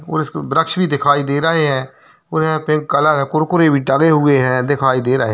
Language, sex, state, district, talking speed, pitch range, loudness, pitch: Hindi, male, Bihar, Kishanganj, 245 wpm, 135-160 Hz, -15 LUFS, 145 Hz